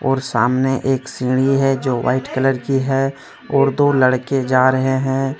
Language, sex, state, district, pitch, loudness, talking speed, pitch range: Hindi, male, Jharkhand, Deoghar, 135 Hz, -17 LUFS, 175 wpm, 130-135 Hz